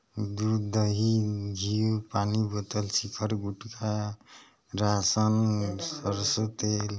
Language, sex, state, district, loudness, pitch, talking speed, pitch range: Bhojpuri, male, Bihar, East Champaran, -29 LUFS, 105 Hz, 85 wpm, 105-110 Hz